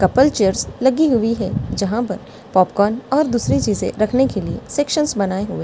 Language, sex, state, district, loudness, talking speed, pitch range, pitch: Hindi, female, Delhi, New Delhi, -18 LUFS, 190 wpm, 195-265 Hz, 225 Hz